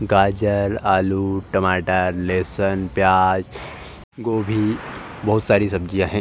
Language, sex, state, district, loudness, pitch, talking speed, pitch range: Hindi, male, Uttar Pradesh, Jalaun, -20 LUFS, 95 Hz, 95 wpm, 95-105 Hz